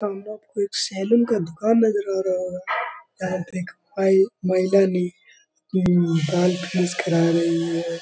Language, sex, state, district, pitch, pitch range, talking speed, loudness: Hindi, male, Bihar, Gaya, 185 Hz, 180-210 Hz, 135 wpm, -22 LUFS